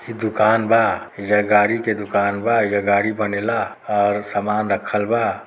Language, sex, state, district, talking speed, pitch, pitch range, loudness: Bhojpuri, male, Uttar Pradesh, Deoria, 165 wpm, 105 Hz, 100-115 Hz, -19 LUFS